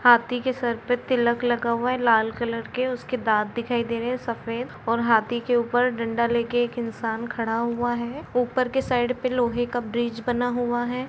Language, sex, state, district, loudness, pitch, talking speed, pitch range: Hindi, female, Uttar Pradesh, Budaun, -24 LUFS, 240 Hz, 215 wpm, 235-245 Hz